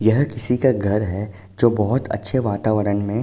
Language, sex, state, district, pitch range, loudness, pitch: Hindi, male, Uttar Pradesh, Jalaun, 100-125 Hz, -20 LUFS, 110 Hz